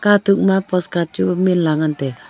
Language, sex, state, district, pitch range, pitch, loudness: Wancho, female, Arunachal Pradesh, Longding, 160-195 Hz, 180 Hz, -17 LUFS